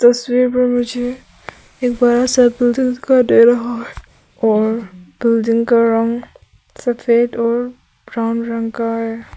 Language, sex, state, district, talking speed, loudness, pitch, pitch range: Hindi, female, Arunachal Pradesh, Papum Pare, 135 wpm, -16 LUFS, 240 Hz, 230-245 Hz